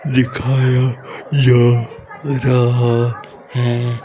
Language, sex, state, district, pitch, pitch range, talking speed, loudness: Hindi, male, Haryana, Rohtak, 125 Hz, 120-130 Hz, 60 wpm, -16 LUFS